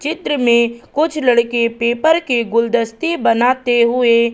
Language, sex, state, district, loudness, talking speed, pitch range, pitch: Hindi, female, Madhya Pradesh, Katni, -15 LUFS, 125 wpm, 235-275 Hz, 240 Hz